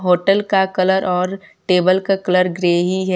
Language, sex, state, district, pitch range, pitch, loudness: Hindi, female, Gujarat, Valsad, 180-195 Hz, 185 Hz, -16 LUFS